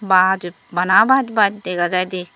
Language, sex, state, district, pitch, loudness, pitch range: Chakma, female, Tripura, Dhalai, 185 Hz, -17 LUFS, 180-205 Hz